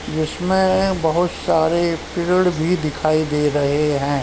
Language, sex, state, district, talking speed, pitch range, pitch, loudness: Hindi, male, Uttar Pradesh, Ghazipur, 130 wpm, 150-180 Hz, 160 Hz, -19 LUFS